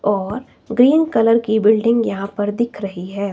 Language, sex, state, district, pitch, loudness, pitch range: Hindi, female, Himachal Pradesh, Shimla, 220 Hz, -17 LUFS, 200-235 Hz